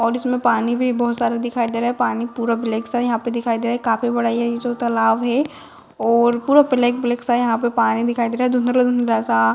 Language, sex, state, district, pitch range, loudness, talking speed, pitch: Hindi, female, Bihar, Madhepura, 230-245 Hz, -19 LUFS, 260 wpm, 235 Hz